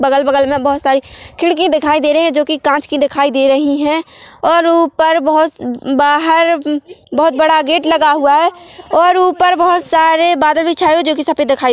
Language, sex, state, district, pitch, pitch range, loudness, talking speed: Hindi, female, Chhattisgarh, Korba, 310 Hz, 285-335 Hz, -12 LUFS, 210 wpm